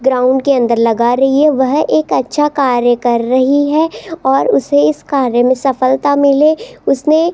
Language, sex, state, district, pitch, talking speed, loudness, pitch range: Hindi, female, Rajasthan, Jaipur, 265 Hz, 180 wpm, -12 LUFS, 245-290 Hz